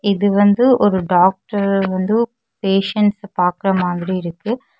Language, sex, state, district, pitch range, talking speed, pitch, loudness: Tamil, female, Tamil Nadu, Kanyakumari, 185-210 Hz, 115 wpm, 200 Hz, -17 LUFS